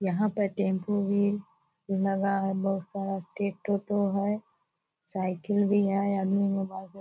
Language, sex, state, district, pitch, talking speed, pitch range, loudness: Hindi, female, Bihar, Purnia, 195 Hz, 155 wpm, 190-200 Hz, -29 LUFS